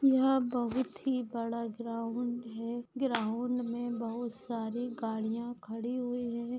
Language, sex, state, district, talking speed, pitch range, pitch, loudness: Hindi, female, Maharashtra, Aurangabad, 120 wpm, 230-245 Hz, 240 Hz, -34 LUFS